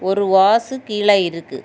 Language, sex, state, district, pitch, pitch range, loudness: Tamil, female, Tamil Nadu, Kanyakumari, 200 Hz, 190-210 Hz, -16 LUFS